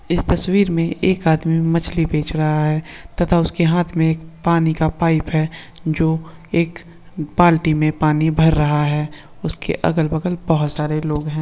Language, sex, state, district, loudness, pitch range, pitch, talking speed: Hindi, male, Andhra Pradesh, Krishna, -18 LUFS, 155-170 Hz, 160 Hz, 175 wpm